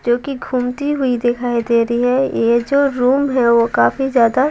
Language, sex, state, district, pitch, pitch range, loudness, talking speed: Hindi, female, Bihar, Patna, 245 Hz, 235-270 Hz, -16 LUFS, 215 wpm